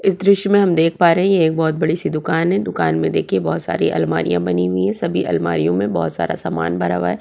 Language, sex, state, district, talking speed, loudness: Hindi, female, Uttarakhand, Tehri Garhwal, 260 wpm, -17 LUFS